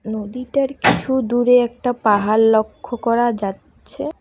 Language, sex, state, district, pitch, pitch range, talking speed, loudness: Bengali, female, West Bengal, Alipurduar, 240 Hz, 220-250 Hz, 115 wpm, -18 LUFS